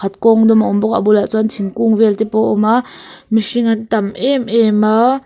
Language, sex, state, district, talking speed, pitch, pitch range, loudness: Mizo, female, Mizoram, Aizawl, 240 wpm, 220 Hz, 215-230 Hz, -14 LUFS